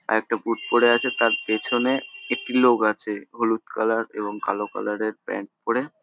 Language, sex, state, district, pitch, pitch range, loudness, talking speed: Bengali, male, West Bengal, North 24 Parganas, 115 Hz, 110-120 Hz, -23 LUFS, 180 wpm